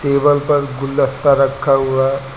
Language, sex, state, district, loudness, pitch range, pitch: Hindi, male, Uttar Pradesh, Lucknow, -15 LUFS, 135-145 Hz, 135 Hz